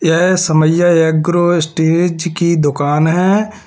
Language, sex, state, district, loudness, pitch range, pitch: Hindi, male, Uttar Pradesh, Lalitpur, -13 LUFS, 160-175 Hz, 170 Hz